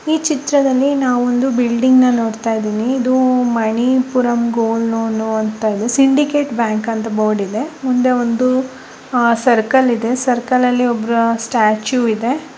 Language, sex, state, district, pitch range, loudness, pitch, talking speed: Kannada, female, Karnataka, Bijapur, 225-255 Hz, -15 LUFS, 245 Hz, 115 wpm